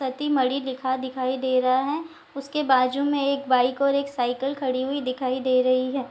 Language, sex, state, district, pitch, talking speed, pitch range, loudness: Hindi, female, Bihar, Sitamarhi, 260 Hz, 205 wpm, 255-275 Hz, -24 LUFS